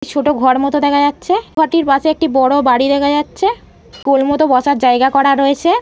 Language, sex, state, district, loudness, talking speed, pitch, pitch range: Bengali, female, West Bengal, North 24 Parganas, -13 LUFS, 195 wpm, 285 Hz, 275-300 Hz